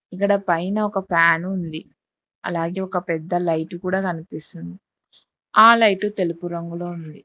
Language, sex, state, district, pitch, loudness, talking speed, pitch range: Telugu, female, Telangana, Hyderabad, 175 Hz, -21 LUFS, 130 wpm, 165-190 Hz